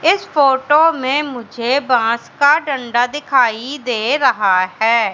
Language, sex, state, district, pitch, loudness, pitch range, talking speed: Hindi, female, Madhya Pradesh, Katni, 260 Hz, -15 LUFS, 235-290 Hz, 130 wpm